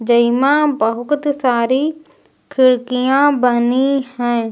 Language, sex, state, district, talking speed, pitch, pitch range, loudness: Hindi, female, Uttar Pradesh, Lucknow, 80 wpm, 255 Hz, 240-285 Hz, -15 LUFS